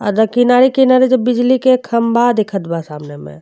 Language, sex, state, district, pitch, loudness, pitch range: Bhojpuri, female, Uttar Pradesh, Deoria, 235 Hz, -13 LUFS, 195-255 Hz